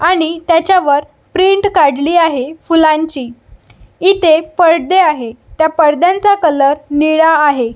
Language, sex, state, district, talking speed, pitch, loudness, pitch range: Marathi, female, Maharashtra, Solapur, 115 wpm, 320 Hz, -11 LUFS, 290-350 Hz